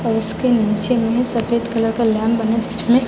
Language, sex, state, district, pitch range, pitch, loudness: Hindi, female, Chhattisgarh, Raipur, 225-235 Hz, 230 Hz, -18 LUFS